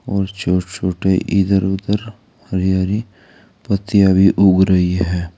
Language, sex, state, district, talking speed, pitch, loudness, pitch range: Hindi, male, Uttar Pradesh, Saharanpur, 135 wpm, 95 Hz, -16 LUFS, 90-100 Hz